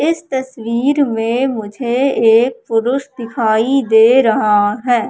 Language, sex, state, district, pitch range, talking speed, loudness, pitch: Hindi, female, Madhya Pradesh, Katni, 225-265 Hz, 120 wpm, -14 LUFS, 240 Hz